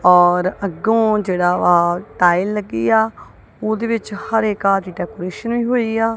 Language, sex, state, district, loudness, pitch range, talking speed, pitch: Punjabi, female, Punjab, Kapurthala, -17 LUFS, 180-225 Hz, 155 wpm, 200 Hz